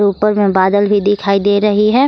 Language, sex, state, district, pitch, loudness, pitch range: Hindi, female, Jharkhand, Garhwa, 205 Hz, -13 LUFS, 200-210 Hz